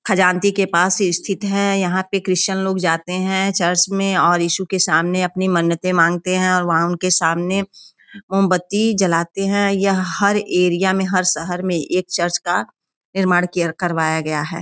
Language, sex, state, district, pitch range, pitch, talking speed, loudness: Hindi, female, Uttar Pradesh, Gorakhpur, 175-195 Hz, 185 Hz, 180 wpm, -18 LUFS